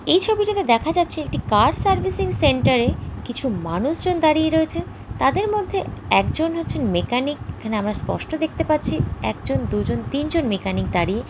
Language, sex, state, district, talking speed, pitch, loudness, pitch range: Bengali, female, West Bengal, Jhargram, 145 wpm, 305 Hz, -21 LUFS, 205-335 Hz